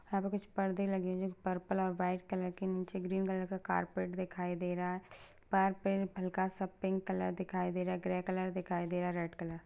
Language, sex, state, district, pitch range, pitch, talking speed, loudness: Hindi, female, Uttar Pradesh, Ghazipur, 180-190 Hz, 185 Hz, 215 wpm, -37 LUFS